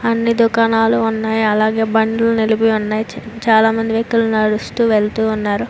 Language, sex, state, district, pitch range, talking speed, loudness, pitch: Telugu, female, Andhra Pradesh, Chittoor, 220-230 Hz, 145 wpm, -15 LUFS, 225 Hz